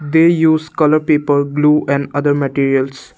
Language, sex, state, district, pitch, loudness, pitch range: English, male, Assam, Kamrup Metropolitan, 145 Hz, -14 LUFS, 140-155 Hz